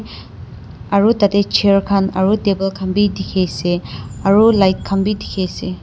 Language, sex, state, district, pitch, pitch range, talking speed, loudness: Nagamese, female, Nagaland, Dimapur, 195 Hz, 190-205 Hz, 165 wpm, -16 LUFS